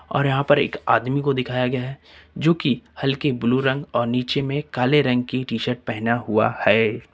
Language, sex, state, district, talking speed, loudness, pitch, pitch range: Hindi, male, Uttar Pradesh, Lucknow, 210 wpm, -21 LUFS, 130 Hz, 120-140 Hz